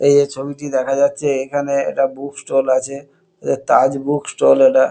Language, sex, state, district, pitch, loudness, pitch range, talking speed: Bengali, male, West Bengal, Kolkata, 140 Hz, -17 LUFS, 135-140 Hz, 170 wpm